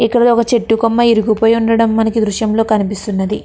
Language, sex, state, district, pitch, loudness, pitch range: Telugu, female, Andhra Pradesh, Krishna, 225 Hz, -13 LUFS, 215-230 Hz